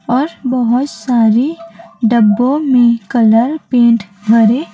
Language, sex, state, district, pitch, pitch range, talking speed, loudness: Hindi, female, Chhattisgarh, Raipur, 240 Hz, 225-255 Hz, 100 wpm, -12 LUFS